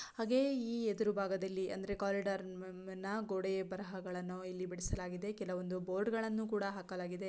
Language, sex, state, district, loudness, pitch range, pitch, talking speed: Kannada, female, Karnataka, Shimoga, -39 LUFS, 185-210 Hz, 190 Hz, 130 wpm